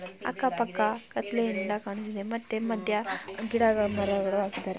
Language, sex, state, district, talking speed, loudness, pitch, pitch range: Kannada, female, Karnataka, Mysore, 115 wpm, -29 LUFS, 215 Hz, 200-225 Hz